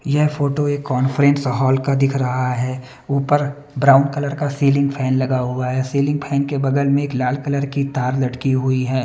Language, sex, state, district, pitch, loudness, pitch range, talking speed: Hindi, male, Bihar, West Champaran, 140 Hz, -18 LUFS, 130-140 Hz, 205 wpm